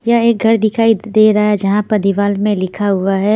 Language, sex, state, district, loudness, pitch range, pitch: Hindi, female, Punjab, Pathankot, -13 LUFS, 200-220 Hz, 210 Hz